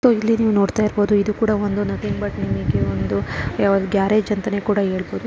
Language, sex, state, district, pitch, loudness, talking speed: Kannada, female, Karnataka, Dakshina Kannada, 200 Hz, -20 LUFS, 135 wpm